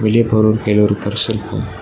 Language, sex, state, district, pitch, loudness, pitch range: Tamil, male, Tamil Nadu, Nilgiris, 110 Hz, -16 LUFS, 105-110 Hz